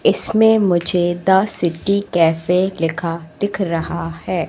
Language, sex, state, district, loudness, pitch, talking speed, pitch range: Hindi, female, Madhya Pradesh, Katni, -17 LUFS, 175 Hz, 120 wpm, 165-195 Hz